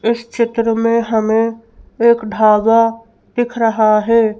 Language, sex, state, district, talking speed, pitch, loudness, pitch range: Hindi, female, Madhya Pradesh, Bhopal, 120 wpm, 230 Hz, -14 LUFS, 220-230 Hz